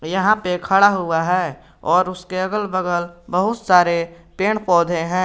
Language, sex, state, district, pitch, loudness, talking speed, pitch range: Hindi, male, Jharkhand, Garhwa, 180 Hz, -18 LUFS, 160 wpm, 175-190 Hz